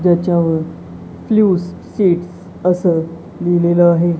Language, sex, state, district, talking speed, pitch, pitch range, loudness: Marathi, female, Maharashtra, Gondia, 85 wpm, 175 Hz, 170-180 Hz, -15 LUFS